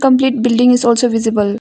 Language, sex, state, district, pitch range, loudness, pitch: English, female, Arunachal Pradesh, Longding, 225-250 Hz, -13 LUFS, 240 Hz